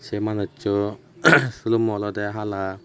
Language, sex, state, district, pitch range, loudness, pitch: Chakma, male, Tripura, West Tripura, 100-110 Hz, -22 LUFS, 105 Hz